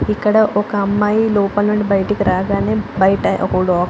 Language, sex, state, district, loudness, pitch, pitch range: Telugu, female, Andhra Pradesh, Anantapur, -16 LUFS, 205 Hz, 195-210 Hz